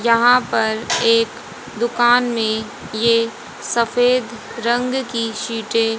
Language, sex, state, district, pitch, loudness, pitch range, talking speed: Hindi, female, Haryana, Jhajjar, 230 Hz, -18 LUFS, 225-240 Hz, 110 wpm